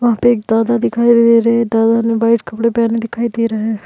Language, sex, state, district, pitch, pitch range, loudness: Hindi, female, Bihar, Madhepura, 230 Hz, 225-235 Hz, -14 LUFS